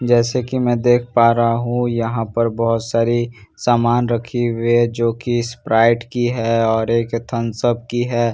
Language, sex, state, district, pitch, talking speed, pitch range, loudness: Hindi, male, Bihar, Katihar, 120 Hz, 210 wpm, 115-120 Hz, -18 LUFS